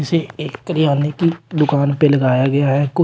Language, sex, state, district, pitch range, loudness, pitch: Hindi, male, Uttar Pradesh, Shamli, 140-160 Hz, -16 LUFS, 150 Hz